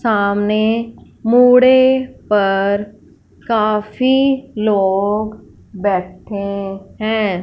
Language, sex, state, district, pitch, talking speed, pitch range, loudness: Hindi, female, Punjab, Fazilka, 215 Hz, 55 wpm, 200-230 Hz, -15 LUFS